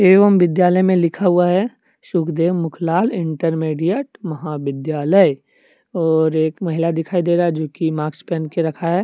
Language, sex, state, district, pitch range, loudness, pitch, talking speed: Hindi, male, Jharkhand, Deoghar, 160-185 Hz, -18 LUFS, 170 Hz, 160 wpm